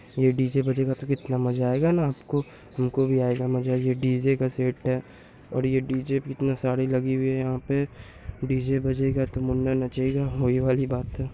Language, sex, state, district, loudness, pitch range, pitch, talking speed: Hindi, male, Bihar, Purnia, -25 LUFS, 130-135 Hz, 130 Hz, 195 wpm